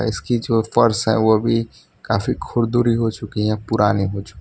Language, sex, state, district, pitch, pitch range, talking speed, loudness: Hindi, male, Gujarat, Valsad, 110 Hz, 105-115 Hz, 205 wpm, -19 LUFS